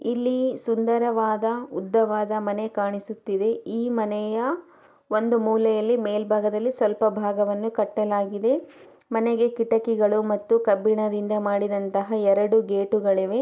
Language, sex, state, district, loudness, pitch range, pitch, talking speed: Kannada, female, Karnataka, Chamarajanagar, -24 LUFS, 205-230 Hz, 215 Hz, 95 wpm